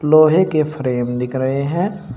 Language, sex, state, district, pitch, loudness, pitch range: Hindi, male, Uttar Pradesh, Shamli, 150 Hz, -17 LUFS, 130-160 Hz